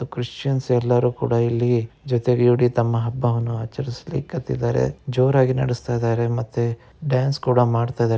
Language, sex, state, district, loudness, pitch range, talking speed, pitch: Kannada, male, Karnataka, Dharwad, -21 LUFS, 115-125 Hz, 110 wpm, 120 Hz